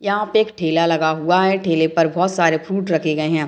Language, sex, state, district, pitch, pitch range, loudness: Hindi, female, Bihar, Gopalganj, 165 Hz, 160-190 Hz, -18 LUFS